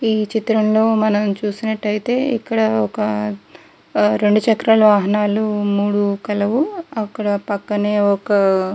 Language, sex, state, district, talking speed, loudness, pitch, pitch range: Telugu, female, Andhra Pradesh, Guntur, 110 wpm, -17 LUFS, 210 Hz, 200-220 Hz